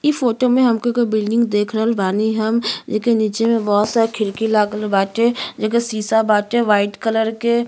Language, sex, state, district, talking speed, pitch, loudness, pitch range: Bhojpuri, female, Uttar Pradesh, Gorakhpur, 180 wpm, 225 Hz, -17 LUFS, 210-235 Hz